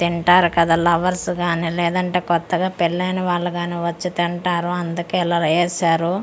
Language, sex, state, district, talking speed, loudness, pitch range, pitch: Telugu, female, Andhra Pradesh, Manyam, 155 wpm, -19 LUFS, 170-180 Hz, 175 Hz